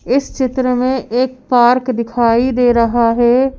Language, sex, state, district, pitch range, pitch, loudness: Hindi, female, Madhya Pradesh, Bhopal, 240-255 Hz, 250 Hz, -14 LUFS